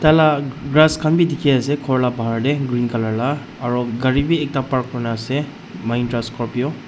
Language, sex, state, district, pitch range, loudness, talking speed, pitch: Nagamese, male, Nagaland, Dimapur, 120-145 Hz, -19 LUFS, 190 wpm, 130 Hz